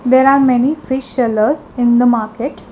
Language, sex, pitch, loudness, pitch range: English, female, 260 Hz, -14 LUFS, 240-270 Hz